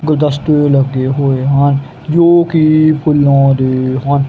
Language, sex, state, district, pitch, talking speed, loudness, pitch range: Punjabi, male, Punjab, Kapurthala, 140 Hz, 140 wpm, -11 LUFS, 135-155 Hz